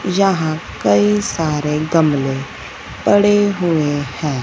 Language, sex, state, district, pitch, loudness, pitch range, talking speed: Hindi, female, Punjab, Fazilka, 155 Hz, -16 LUFS, 135-175 Hz, 95 wpm